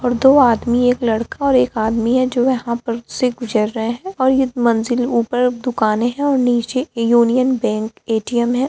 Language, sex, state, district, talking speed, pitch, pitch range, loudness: Hindi, female, Bihar, Lakhisarai, 195 wpm, 245 Hz, 230-255 Hz, -17 LUFS